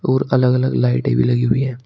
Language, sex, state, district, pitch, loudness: Hindi, male, Uttar Pradesh, Shamli, 125 Hz, -17 LUFS